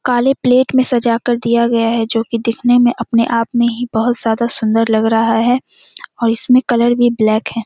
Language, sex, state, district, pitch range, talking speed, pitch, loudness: Hindi, female, Bihar, Kishanganj, 230-245 Hz, 220 wpm, 235 Hz, -14 LUFS